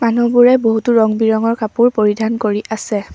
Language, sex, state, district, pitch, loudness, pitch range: Assamese, female, Assam, Sonitpur, 225 Hz, -14 LUFS, 220-235 Hz